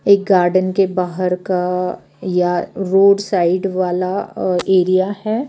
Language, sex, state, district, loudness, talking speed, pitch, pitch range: Hindi, female, Bihar, Katihar, -16 LUFS, 130 wpm, 185 Hz, 180-195 Hz